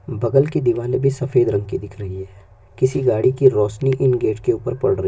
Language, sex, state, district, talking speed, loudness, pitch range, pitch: Hindi, male, Chhattisgarh, Bastar, 250 wpm, -18 LUFS, 105-130 Hz, 125 Hz